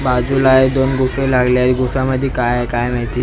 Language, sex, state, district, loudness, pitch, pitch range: Marathi, male, Maharashtra, Mumbai Suburban, -15 LUFS, 130 Hz, 125-130 Hz